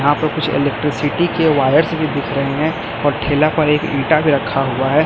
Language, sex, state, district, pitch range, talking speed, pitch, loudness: Hindi, male, Chhattisgarh, Raipur, 140-155 Hz, 215 wpm, 145 Hz, -16 LUFS